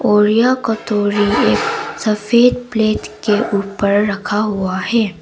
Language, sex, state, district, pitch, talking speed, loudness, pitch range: Hindi, female, Arunachal Pradesh, Papum Pare, 210 Hz, 125 wpm, -16 LUFS, 205-230 Hz